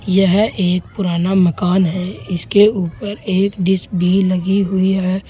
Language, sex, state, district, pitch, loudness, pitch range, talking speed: Hindi, male, Uttar Pradesh, Saharanpur, 190 Hz, -16 LUFS, 180-195 Hz, 145 wpm